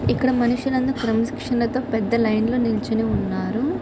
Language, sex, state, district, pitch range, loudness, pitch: Telugu, female, Andhra Pradesh, Visakhapatnam, 225-255 Hz, -21 LUFS, 235 Hz